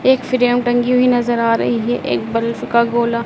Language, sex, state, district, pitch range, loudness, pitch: Hindi, female, Madhya Pradesh, Dhar, 235-245 Hz, -16 LUFS, 240 Hz